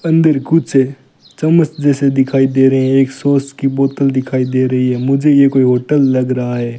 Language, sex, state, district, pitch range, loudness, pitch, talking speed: Hindi, male, Rajasthan, Bikaner, 130-140 Hz, -13 LUFS, 135 Hz, 205 wpm